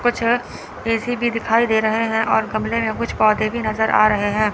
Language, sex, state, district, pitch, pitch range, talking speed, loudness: Hindi, female, Chandigarh, Chandigarh, 225 Hz, 215-230 Hz, 225 wpm, -19 LUFS